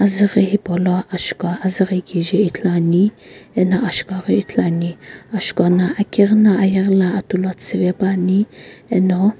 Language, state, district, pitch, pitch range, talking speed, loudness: Sumi, Nagaland, Kohima, 190 Hz, 180-205 Hz, 160 wpm, -17 LUFS